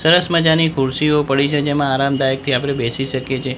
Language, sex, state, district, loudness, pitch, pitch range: Gujarati, male, Gujarat, Gandhinagar, -17 LUFS, 140 Hz, 135-150 Hz